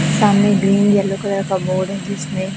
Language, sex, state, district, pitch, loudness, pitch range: Hindi, male, Chhattisgarh, Raipur, 195 Hz, -16 LUFS, 185-200 Hz